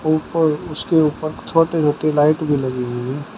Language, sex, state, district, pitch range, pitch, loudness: Hindi, male, Uttar Pradesh, Shamli, 145-155 Hz, 155 Hz, -18 LUFS